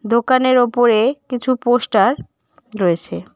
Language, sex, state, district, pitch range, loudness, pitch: Bengali, female, West Bengal, Cooch Behar, 215-255 Hz, -16 LUFS, 245 Hz